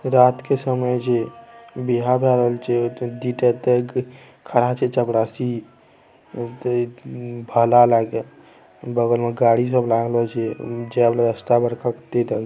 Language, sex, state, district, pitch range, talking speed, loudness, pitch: Hindi, male, Bihar, Araria, 120-125 Hz, 90 wpm, -20 LUFS, 120 Hz